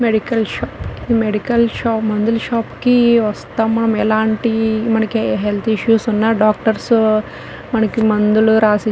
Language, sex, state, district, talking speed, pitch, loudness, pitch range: Telugu, female, Telangana, Nalgonda, 130 wpm, 220 Hz, -16 LUFS, 215-230 Hz